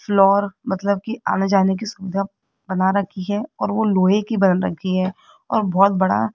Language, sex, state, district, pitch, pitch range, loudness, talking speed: Hindi, female, Rajasthan, Jaipur, 195 Hz, 190-205 Hz, -20 LUFS, 200 wpm